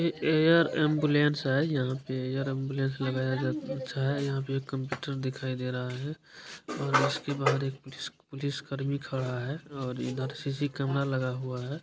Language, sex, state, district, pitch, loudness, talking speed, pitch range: Hindi, male, Bihar, Saran, 135 Hz, -30 LUFS, 175 wpm, 130-145 Hz